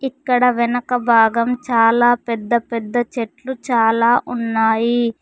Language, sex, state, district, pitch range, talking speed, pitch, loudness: Telugu, female, Telangana, Mahabubabad, 230-245 Hz, 105 wpm, 235 Hz, -17 LUFS